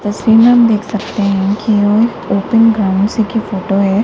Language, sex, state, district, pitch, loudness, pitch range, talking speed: Hindi, female, Uttar Pradesh, Lalitpur, 210 Hz, -12 LUFS, 200-225 Hz, 180 wpm